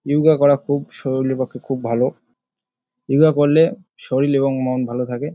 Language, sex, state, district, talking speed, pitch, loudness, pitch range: Bengali, male, West Bengal, Jalpaiguri, 170 wpm, 135 Hz, -18 LUFS, 130-145 Hz